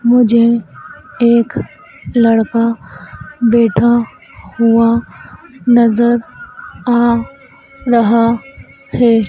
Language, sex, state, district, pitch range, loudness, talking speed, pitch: Hindi, female, Madhya Pradesh, Dhar, 230-240 Hz, -13 LUFS, 60 wpm, 235 Hz